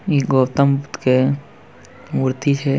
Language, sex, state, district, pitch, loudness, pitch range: Hindi, male, Bihar, Purnia, 140 Hz, -18 LUFS, 130-140 Hz